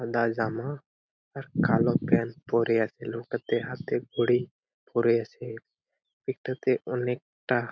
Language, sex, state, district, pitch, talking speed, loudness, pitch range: Bengali, male, West Bengal, Purulia, 120 Hz, 115 wpm, -28 LUFS, 115-125 Hz